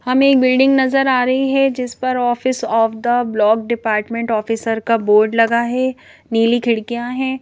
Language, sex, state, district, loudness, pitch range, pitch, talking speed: Hindi, female, Madhya Pradesh, Bhopal, -16 LUFS, 225-255 Hz, 240 Hz, 170 wpm